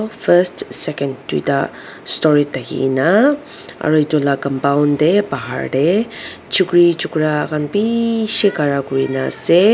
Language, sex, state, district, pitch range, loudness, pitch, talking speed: Nagamese, female, Nagaland, Dimapur, 140-205 Hz, -16 LUFS, 155 Hz, 115 wpm